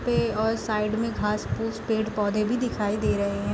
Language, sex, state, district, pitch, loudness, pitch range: Hindi, female, Bihar, Gopalganj, 215 Hz, -26 LUFS, 205-225 Hz